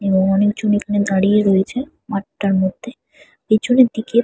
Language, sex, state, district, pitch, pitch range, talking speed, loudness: Bengali, female, West Bengal, Purulia, 205 Hz, 195-230 Hz, 125 wpm, -17 LUFS